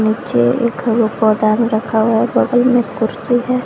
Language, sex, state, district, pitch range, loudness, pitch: Hindi, female, Jharkhand, Garhwa, 220-245 Hz, -15 LUFS, 225 Hz